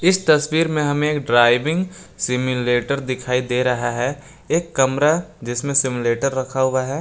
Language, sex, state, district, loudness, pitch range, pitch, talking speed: Hindi, male, Jharkhand, Garhwa, -19 LUFS, 125-150 Hz, 135 Hz, 155 wpm